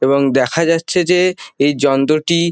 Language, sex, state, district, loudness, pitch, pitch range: Bengali, male, West Bengal, Dakshin Dinajpur, -15 LUFS, 155 Hz, 135-170 Hz